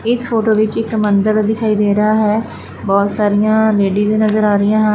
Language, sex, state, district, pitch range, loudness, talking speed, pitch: Punjabi, female, Punjab, Fazilka, 210-220 Hz, -14 LUFS, 195 wpm, 215 Hz